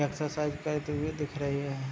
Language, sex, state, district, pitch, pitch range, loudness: Hindi, male, Bihar, Begusarai, 150 Hz, 140-150 Hz, -33 LUFS